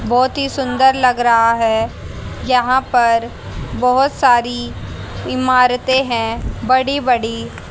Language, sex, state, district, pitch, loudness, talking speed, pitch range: Hindi, female, Haryana, Rohtak, 250 Hz, -15 LUFS, 100 wpm, 230-260 Hz